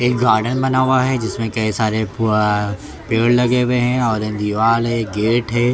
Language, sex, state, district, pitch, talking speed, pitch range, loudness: Hindi, male, Maharashtra, Mumbai Suburban, 115 Hz, 190 wpm, 110-125 Hz, -17 LUFS